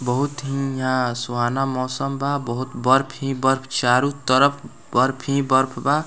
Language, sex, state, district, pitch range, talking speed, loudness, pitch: Bhojpuri, male, Bihar, Muzaffarpur, 130-140 Hz, 160 wpm, -21 LUFS, 135 Hz